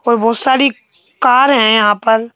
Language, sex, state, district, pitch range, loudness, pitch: Hindi, male, Madhya Pradesh, Bhopal, 225-260 Hz, -12 LUFS, 235 Hz